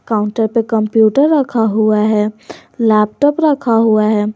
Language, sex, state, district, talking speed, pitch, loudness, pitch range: Hindi, female, Jharkhand, Garhwa, 140 wpm, 220 Hz, -13 LUFS, 215-235 Hz